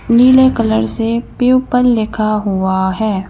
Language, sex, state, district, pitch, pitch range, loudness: Hindi, female, Madhya Pradesh, Bhopal, 225 Hz, 195-245 Hz, -13 LUFS